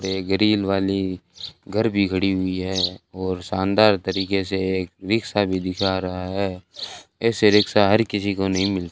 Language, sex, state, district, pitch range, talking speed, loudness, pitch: Hindi, male, Rajasthan, Bikaner, 95-100 Hz, 170 wpm, -21 LUFS, 95 Hz